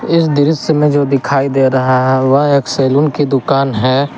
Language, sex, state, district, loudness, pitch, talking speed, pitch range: Hindi, male, Jharkhand, Garhwa, -12 LUFS, 140 Hz, 200 wpm, 135-145 Hz